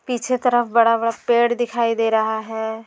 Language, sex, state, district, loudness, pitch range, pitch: Hindi, female, Bihar, Saran, -19 LUFS, 225-240 Hz, 230 Hz